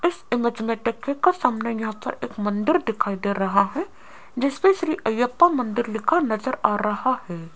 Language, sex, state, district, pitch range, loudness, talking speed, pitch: Hindi, female, Rajasthan, Jaipur, 215-315 Hz, -23 LUFS, 165 wpm, 240 Hz